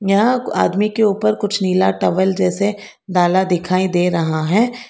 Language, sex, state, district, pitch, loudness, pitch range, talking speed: Hindi, female, Karnataka, Bangalore, 190 Hz, -17 LUFS, 180-210 Hz, 160 wpm